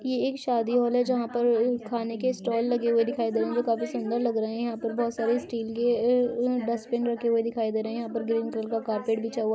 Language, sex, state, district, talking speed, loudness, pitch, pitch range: Hindi, female, Uttar Pradesh, Ghazipur, 280 wpm, -27 LUFS, 235 Hz, 230-240 Hz